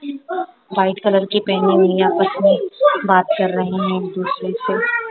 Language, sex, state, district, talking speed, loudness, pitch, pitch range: Hindi, female, Punjab, Kapurthala, 175 wpm, -17 LUFS, 195 Hz, 190-285 Hz